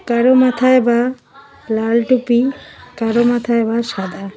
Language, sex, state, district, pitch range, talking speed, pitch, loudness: Bengali, female, West Bengal, Cooch Behar, 230-255 Hz, 125 wpm, 240 Hz, -15 LUFS